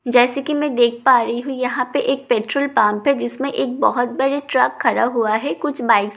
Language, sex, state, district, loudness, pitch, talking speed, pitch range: Hindi, female, Bihar, Katihar, -18 LUFS, 250 Hz, 245 wpm, 235-275 Hz